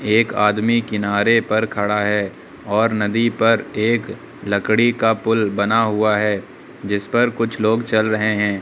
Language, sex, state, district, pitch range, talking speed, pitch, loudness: Hindi, male, Uttar Pradesh, Lucknow, 105-115 Hz, 160 wpm, 110 Hz, -18 LUFS